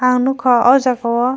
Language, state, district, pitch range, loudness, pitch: Kokborok, Tripura, Dhalai, 245-255 Hz, -14 LUFS, 250 Hz